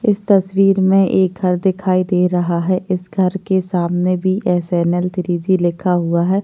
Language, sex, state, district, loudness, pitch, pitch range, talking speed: Hindi, female, Maharashtra, Chandrapur, -16 LUFS, 185 Hz, 180-190 Hz, 175 wpm